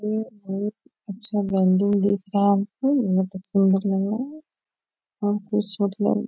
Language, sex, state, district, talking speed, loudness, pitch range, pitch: Hindi, female, Bihar, Bhagalpur, 160 wpm, -23 LUFS, 195-210 Hz, 200 Hz